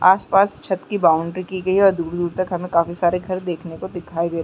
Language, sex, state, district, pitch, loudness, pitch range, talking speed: Chhattisgarhi, female, Chhattisgarh, Jashpur, 180 Hz, -20 LUFS, 170-185 Hz, 245 wpm